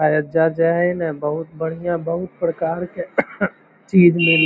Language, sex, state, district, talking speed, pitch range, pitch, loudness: Magahi, male, Bihar, Lakhisarai, 160 wpm, 160-175 Hz, 165 Hz, -19 LUFS